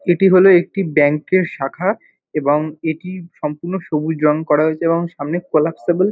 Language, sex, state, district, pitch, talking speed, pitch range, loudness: Bengali, male, West Bengal, North 24 Parganas, 165 Hz, 165 wpm, 150-185 Hz, -17 LUFS